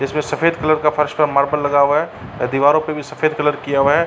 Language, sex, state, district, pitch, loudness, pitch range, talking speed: Hindi, male, Uttar Pradesh, Jalaun, 150 Hz, -17 LUFS, 145-155 Hz, 265 wpm